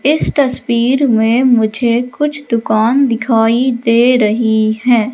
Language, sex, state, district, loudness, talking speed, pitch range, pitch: Hindi, female, Madhya Pradesh, Katni, -13 LUFS, 115 wpm, 225-255 Hz, 235 Hz